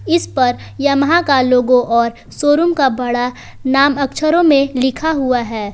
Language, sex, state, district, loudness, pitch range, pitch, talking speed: Hindi, female, Jharkhand, Palamu, -14 LUFS, 250-295 Hz, 270 Hz, 155 wpm